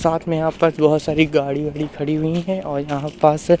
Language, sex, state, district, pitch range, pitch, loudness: Hindi, male, Madhya Pradesh, Katni, 150-165 Hz, 155 Hz, -19 LUFS